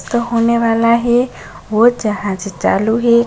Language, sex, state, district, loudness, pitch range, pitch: Hindi, female, Bihar, Darbhanga, -15 LUFS, 215-235 Hz, 230 Hz